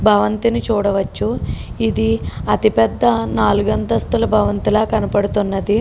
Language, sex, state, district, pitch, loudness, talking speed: Telugu, female, Telangana, Karimnagar, 200 Hz, -17 LUFS, 85 wpm